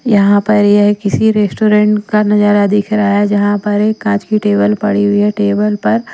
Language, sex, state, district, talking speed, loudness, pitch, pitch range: Hindi, female, Maharashtra, Washim, 215 wpm, -12 LUFS, 210 Hz, 205-210 Hz